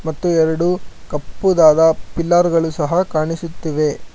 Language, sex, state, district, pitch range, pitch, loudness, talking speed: Kannada, male, Karnataka, Bangalore, 155-175 Hz, 165 Hz, -16 LUFS, 100 wpm